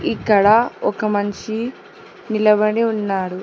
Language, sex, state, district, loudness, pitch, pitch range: Telugu, female, Telangana, Hyderabad, -18 LUFS, 215 Hz, 205-230 Hz